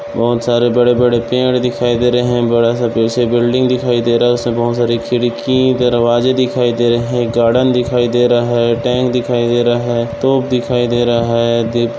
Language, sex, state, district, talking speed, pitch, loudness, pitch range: Bhojpuri, male, Uttar Pradesh, Gorakhpur, 215 wpm, 120 Hz, -14 LUFS, 120-125 Hz